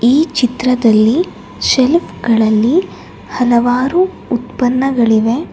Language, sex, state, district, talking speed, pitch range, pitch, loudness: Kannada, female, Karnataka, Bangalore, 65 wpm, 235-270 Hz, 245 Hz, -13 LUFS